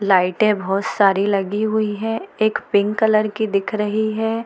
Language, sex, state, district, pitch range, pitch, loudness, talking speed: Hindi, female, Chhattisgarh, Bilaspur, 200-220 Hz, 215 Hz, -19 LUFS, 175 wpm